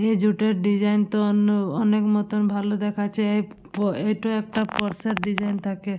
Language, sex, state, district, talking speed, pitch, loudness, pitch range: Bengali, female, West Bengal, Dakshin Dinajpur, 190 wpm, 210 Hz, -23 LUFS, 205-215 Hz